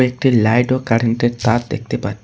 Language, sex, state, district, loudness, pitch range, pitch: Bengali, male, West Bengal, Cooch Behar, -17 LUFS, 115-125 Hz, 120 Hz